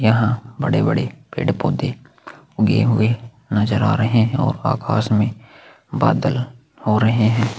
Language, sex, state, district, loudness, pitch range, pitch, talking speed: Hindi, male, Chhattisgarh, Sukma, -19 LUFS, 110-130 Hz, 115 Hz, 160 wpm